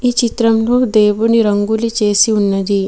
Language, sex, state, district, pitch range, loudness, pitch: Telugu, female, Telangana, Komaram Bheem, 205-230 Hz, -13 LUFS, 220 Hz